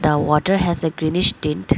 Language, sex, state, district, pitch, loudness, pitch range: English, female, Arunachal Pradesh, Lower Dibang Valley, 155 Hz, -18 LUFS, 150-175 Hz